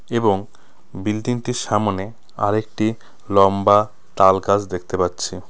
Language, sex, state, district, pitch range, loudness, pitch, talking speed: Bengali, male, West Bengal, Cooch Behar, 95-110 Hz, -19 LUFS, 100 Hz, 100 wpm